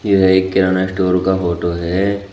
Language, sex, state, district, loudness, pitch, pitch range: Hindi, male, Uttar Pradesh, Shamli, -16 LUFS, 95 Hz, 90-95 Hz